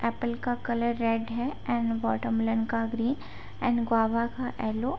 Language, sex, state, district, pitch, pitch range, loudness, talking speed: Hindi, female, Bihar, Saharsa, 235 Hz, 225-240 Hz, -29 LUFS, 170 wpm